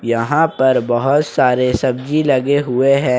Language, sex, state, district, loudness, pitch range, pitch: Hindi, male, Jharkhand, Ranchi, -15 LUFS, 125-145 Hz, 130 Hz